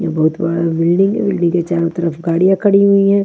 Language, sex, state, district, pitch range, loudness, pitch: Hindi, female, Maharashtra, Washim, 165-195 Hz, -14 LUFS, 170 Hz